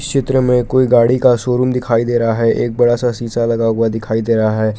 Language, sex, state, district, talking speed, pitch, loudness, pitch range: Hindi, male, Jharkhand, Palamu, 250 wpm, 120 Hz, -14 LUFS, 115-125 Hz